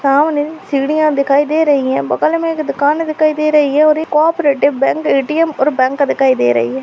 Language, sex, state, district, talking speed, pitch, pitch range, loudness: Hindi, female, Maharashtra, Sindhudurg, 220 wpm, 290 Hz, 275-310 Hz, -13 LUFS